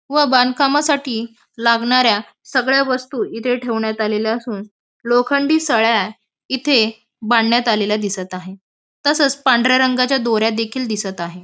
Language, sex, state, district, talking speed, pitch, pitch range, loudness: Marathi, female, Maharashtra, Aurangabad, 120 wpm, 235 Hz, 220-260 Hz, -17 LUFS